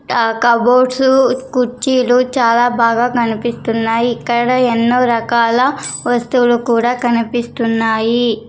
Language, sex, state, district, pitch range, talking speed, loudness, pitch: Telugu, female, Andhra Pradesh, Sri Satya Sai, 230-250 Hz, 85 wpm, -14 LUFS, 240 Hz